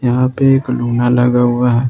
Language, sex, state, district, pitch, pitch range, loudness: Hindi, male, Jharkhand, Ranchi, 125 Hz, 120-125 Hz, -13 LUFS